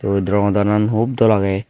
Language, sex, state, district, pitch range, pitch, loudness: Chakma, male, Tripura, Dhalai, 100-110 Hz, 100 Hz, -16 LUFS